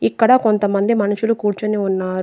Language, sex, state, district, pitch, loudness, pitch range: Telugu, female, Telangana, Adilabad, 210 Hz, -17 LUFS, 200-225 Hz